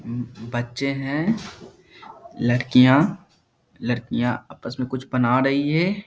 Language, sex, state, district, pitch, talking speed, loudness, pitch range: Hindi, male, Bihar, Jahanabad, 130 Hz, 110 wpm, -22 LUFS, 120-155 Hz